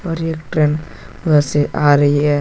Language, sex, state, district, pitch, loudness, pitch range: Hindi, male, Jharkhand, Deoghar, 150 Hz, -16 LUFS, 145-155 Hz